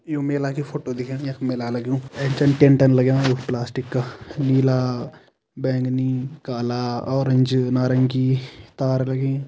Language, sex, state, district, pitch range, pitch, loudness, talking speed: Kumaoni, male, Uttarakhand, Tehri Garhwal, 125-135 Hz, 130 Hz, -21 LUFS, 140 wpm